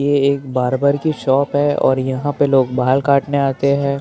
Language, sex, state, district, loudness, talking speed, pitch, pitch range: Hindi, male, Maharashtra, Mumbai Suburban, -16 LUFS, 255 wpm, 140 Hz, 130-140 Hz